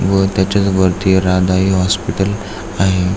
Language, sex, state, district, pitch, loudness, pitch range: Marathi, male, Maharashtra, Aurangabad, 95 Hz, -15 LUFS, 95-100 Hz